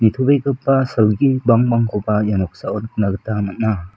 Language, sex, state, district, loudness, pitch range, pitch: Garo, male, Meghalaya, South Garo Hills, -18 LUFS, 105-130 Hz, 110 Hz